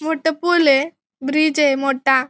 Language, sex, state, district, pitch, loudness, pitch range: Marathi, female, Maharashtra, Pune, 295 Hz, -17 LUFS, 275-320 Hz